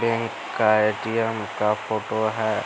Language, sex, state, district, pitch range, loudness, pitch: Hindi, male, Bihar, Araria, 105-115 Hz, -23 LUFS, 110 Hz